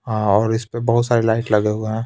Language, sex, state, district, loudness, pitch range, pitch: Hindi, male, Bihar, Patna, -18 LUFS, 110-115 Hz, 110 Hz